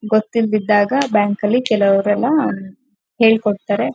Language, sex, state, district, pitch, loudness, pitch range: Kannada, female, Karnataka, Shimoga, 215 Hz, -16 LUFS, 205-230 Hz